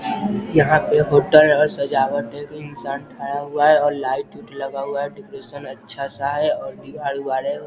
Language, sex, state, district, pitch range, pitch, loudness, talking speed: Hindi, male, Bihar, Vaishali, 140-150 Hz, 145 Hz, -19 LUFS, 170 wpm